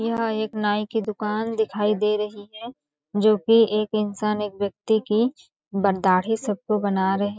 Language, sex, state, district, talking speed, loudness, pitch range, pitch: Hindi, female, Chhattisgarh, Balrampur, 180 wpm, -23 LUFS, 205-220 Hz, 210 Hz